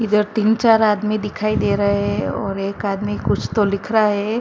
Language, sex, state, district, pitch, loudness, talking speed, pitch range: Hindi, female, Maharashtra, Mumbai Suburban, 210 Hz, -19 LUFS, 220 wpm, 200-220 Hz